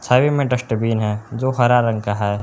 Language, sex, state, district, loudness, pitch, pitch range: Hindi, male, Jharkhand, Palamu, -18 LUFS, 115 Hz, 105-125 Hz